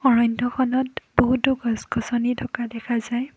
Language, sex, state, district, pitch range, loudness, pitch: Assamese, female, Assam, Kamrup Metropolitan, 235-260 Hz, -23 LUFS, 245 Hz